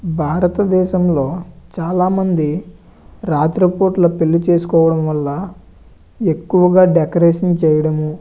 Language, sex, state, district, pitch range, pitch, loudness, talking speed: Telugu, male, Andhra Pradesh, Visakhapatnam, 155-180 Hz, 170 Hz, -15 LUFS, 190 wpm